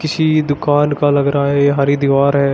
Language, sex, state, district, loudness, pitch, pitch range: Hindi, male, Uttar Pradesh, Shamli, -14 LUFS, 140 Hz, 140-145 Hz